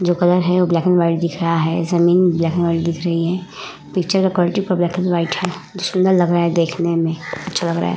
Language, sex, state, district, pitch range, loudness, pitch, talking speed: Hindi, female, Uttar Pradesh, Muzaffarnagar, 170-180 Hz, -17 LUFS, 175 Hz, 265 wpm